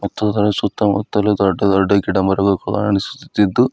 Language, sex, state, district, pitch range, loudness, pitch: Kannada, male, Karnataka, Bidar, 100-105 Hz, -17 LUFS, 100 Hz